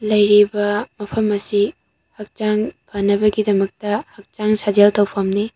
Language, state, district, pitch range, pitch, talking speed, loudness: Manipuri, Manipur, Imphal West, 205-215 Hz, 210 Hz, 95 wpm, -18 LUFS